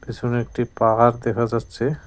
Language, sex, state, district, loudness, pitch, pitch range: Bengali, male, West Bengal, Cooch Behar, -21 LUFS, 120 Hz, 115-120 Hz